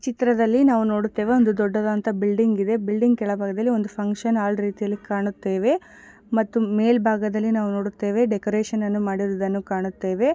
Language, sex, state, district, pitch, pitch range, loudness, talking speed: Kannada, female, Karnataka, Gulbarga, 215 Hz, 205-225 Hz, -22 LUFS, 120 wpm